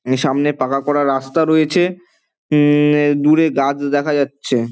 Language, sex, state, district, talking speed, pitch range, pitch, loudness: Bengali, male, West Bengal, Dakshin Dinajpur, 100 wpm, 135-150 Hz, 145 Hz, -16 LUFS